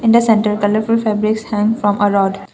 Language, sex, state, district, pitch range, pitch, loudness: English, female, Assam, Kamrup Metropolitan, 205-220 Hz, 215 Hz, -15 LUFS